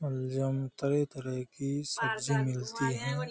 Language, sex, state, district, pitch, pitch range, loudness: Hindi, male, Uttar Pradesh, Hamirpur, 140 Hz, 130-145 Hz, -33 LUFS